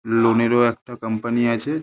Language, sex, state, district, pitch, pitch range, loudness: Bengali, male, West Bengal, Paschim Medinipur, 120 Hz, 115-120 Hz, -20 LUFS